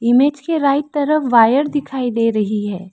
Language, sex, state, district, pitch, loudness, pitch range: Hindi, female, Arunachal Pradesh, Lower Dibang Valley, 265 Hz, -16 LUFS, 230-290 Hz